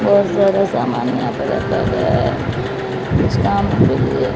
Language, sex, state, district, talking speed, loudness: Hindi, female, Odisha, Malkangiri, 165 wpm, -17 LUFS